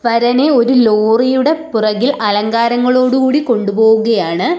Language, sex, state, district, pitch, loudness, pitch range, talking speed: Malayalam, female, Kerala, Kollam, 235 Hz, -12 LUFS, 220-255 Hz, 90 wpm